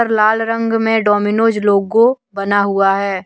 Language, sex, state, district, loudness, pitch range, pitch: Hindi, female, Jharkhand, Deoghar, -14 LUFS, 200-225 Hz, 210 Hz